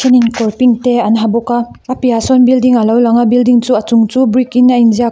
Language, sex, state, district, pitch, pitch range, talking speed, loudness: Mizo, female, Mizoram, Aizawl, 240 Hz, 230-250 Hz, 295 wpm, -10 LUFS